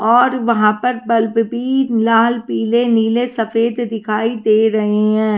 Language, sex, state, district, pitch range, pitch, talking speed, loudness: Hindi, female, Haryana, Rohtak, 220-240 Hz, 225 Hz, 145 wpm, -15 LUFS